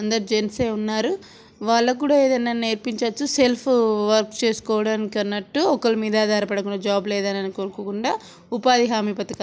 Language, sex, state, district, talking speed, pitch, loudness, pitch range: Telugu, female, Andhra Pradesh, Srikakulam, 145 wpm, 220 Hz, -22 LUFS, 210-245 Hz